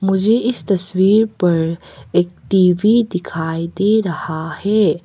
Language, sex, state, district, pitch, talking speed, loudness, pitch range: Hindi, female, Arunachal Pradesh, Papum Pare, 185 Hz, 120 wpm, -17 LUFS, 170-215 Hz